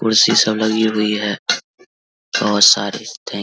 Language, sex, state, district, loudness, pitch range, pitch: Hindi, male, Bihar, Vaishali, -15 LUFS, 105-110 Hz, 105 Hz